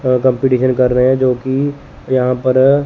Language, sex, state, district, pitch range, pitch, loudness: Hindi, male, Chandigarh, Chandigarh, 125-130 Hz, 130 Hz, -14 LUFS